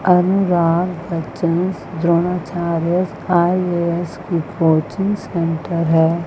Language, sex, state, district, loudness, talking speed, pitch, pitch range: Hindi, female, Chandigarh, Chandigarh, -18 LUFS, 75 wpm, 170 Hz, 170-180 Hz